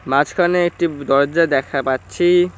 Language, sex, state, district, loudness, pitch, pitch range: Bengali, male, West Bengal, Cooch Behar, -17 LUFS, 145 Hz, 135-175 Hz